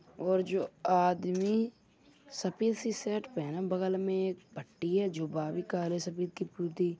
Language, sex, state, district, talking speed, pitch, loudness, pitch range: Bundeli, female, Uttar Pradesh, Hamirpur, 145 wpm, 185 Hz, -33 LUFS, 175-195 Hz